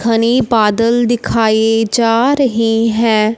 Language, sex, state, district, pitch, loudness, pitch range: Hindi, male, Punjab, Fazilka, 230 Hz, -13 LUFS, 225-235 Hz